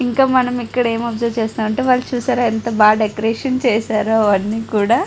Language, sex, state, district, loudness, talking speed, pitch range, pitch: Telugu, female, Andhra Pradesh, Guntur, -17 LUFS, 165 wpm, 220-250 Hz, 230 Hz